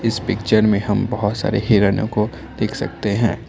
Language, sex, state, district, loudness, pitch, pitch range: Hindi, male, Assam, Kamrup Metropolitan, -19 LUFS, 110 Hz, 105-115 Hz